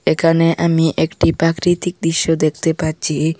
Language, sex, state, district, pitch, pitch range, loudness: Bengali, female, Assam, Hailakandi, 165 Hz, 160-165 Hz, -16 LUFS